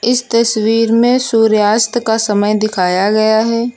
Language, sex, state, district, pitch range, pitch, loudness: Hindi, female, Uttar Pradesh, Lucknow, 215-230 Hz, 225 Hz, -13 LUFS